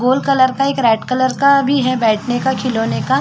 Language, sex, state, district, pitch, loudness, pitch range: Hindi, female, Chhattisgarh, Bilaspur, 255 Hz, -15 LUFS, 245-275 Hz